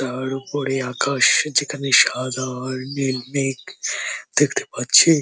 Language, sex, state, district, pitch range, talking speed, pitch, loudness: Bengali, male, West Bengal, Jhargram, 130-140 Hz, 115 wpm, 135 Hz, -19 LUFS